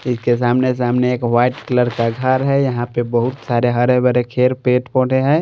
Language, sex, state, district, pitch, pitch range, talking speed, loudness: Hindi, male, Bihar, Patna, 125 Hz, 120-130 Hz, 210 wpm, -16 LUFS